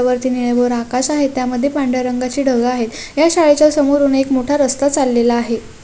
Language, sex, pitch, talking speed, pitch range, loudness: Marathi, female, 260 Hz, 175 wpm, 245-280 Hz, -15 LUFS